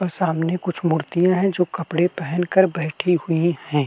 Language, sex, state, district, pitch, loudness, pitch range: Hindi, male, Uttarakhand, Tehri Garhwal, 175 Hz, -21 LUFS, 165-180 Hz